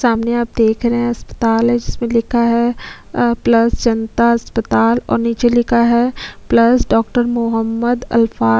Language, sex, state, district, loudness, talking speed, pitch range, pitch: Hindi, female, Uttar Pradesh, Jyotiba Phule Nagar, -15 LUFS, 140 wpm, 225-240 Hz, 235 Hz